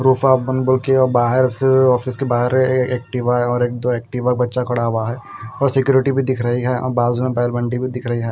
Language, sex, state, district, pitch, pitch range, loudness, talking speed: Hindi, male, Punjab, Kapurthala, 125 Hz, 120-130 Hz, -17 LUFS, 180 wpm